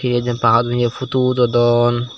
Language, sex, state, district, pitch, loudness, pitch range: Chakma, male, Tripura, Dhalai, 120 Hz, -16 LUFS, 120-125 Hz